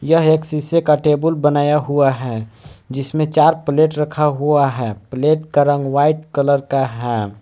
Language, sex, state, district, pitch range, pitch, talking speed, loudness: Hindi, male, Jharkhand, Palamu, 135-155 Hz, 145 Hz, 170 wpm, -16 LUFS